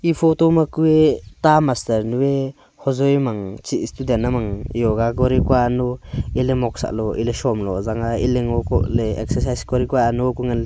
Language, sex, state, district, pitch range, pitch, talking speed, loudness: Wancho, male, Arunachal Pradesh, Longding, 115-135 Hz, 125 Hz, 185 wpm, -19 LUFS